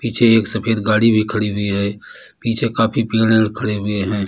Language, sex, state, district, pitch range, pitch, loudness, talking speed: Hindi, male, Uttar Pradesh, Lalitpur, 105-115 Hz, 110 Hz, -17 LUFS, 180 wpm